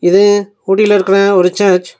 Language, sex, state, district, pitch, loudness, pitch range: Tamil, male, Tamil Nadu, Nilgiris, 195 Hz, -11 LUFS, 185-205 Hz